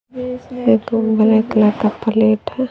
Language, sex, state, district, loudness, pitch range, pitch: Hindi, female, Bihar, West Champaran, -16 LUFS, 220-250 Hz, 225 Hz